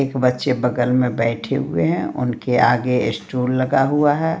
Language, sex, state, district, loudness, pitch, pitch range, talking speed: Hindi, female, Bihar, Patna, -19 LUFS, 125 Hz, 125-140 Hz, 175 wpm